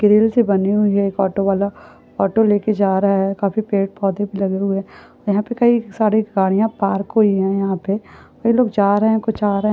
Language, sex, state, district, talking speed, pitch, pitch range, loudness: Hindi, female, West Bengal, Purulia, 215 wpm, 200 Hz, 195-215 Hz, -18 LUFS